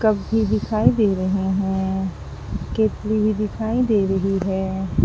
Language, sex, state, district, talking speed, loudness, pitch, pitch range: Hindi, female, Uttar Pradesh, Saharanpur, 145 wpm, -21 LUFS, 205 Hz, 190-215 Hz